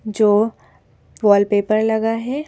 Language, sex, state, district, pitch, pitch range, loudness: Hindi, female, Madhya Pradesh, Bhopal, 215 Hz, 205-225 Hz, -17 LUFS